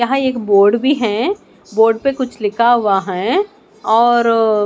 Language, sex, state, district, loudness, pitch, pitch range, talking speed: Hindi, female, Maharashtra, Mumbai Suburban, -15 LUFS, 230 Hz, 215-260 Hz, 155 wpm